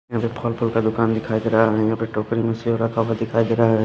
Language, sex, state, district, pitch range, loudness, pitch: Hindi, male, Himachal Pradesh, Shimla, 110-115 Hz, -21 LUFS, 115 Hz